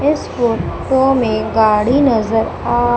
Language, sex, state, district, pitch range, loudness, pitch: Hindi, female, Madhya Pradesh, Umaria, 220-265 Hz, -15 LUFS, 240 Hz